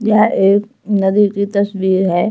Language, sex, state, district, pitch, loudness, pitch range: Hindi, female, Uttar Pradesh, Hamirpur, 200 Hz, -14 LUFS, 190-210 Hz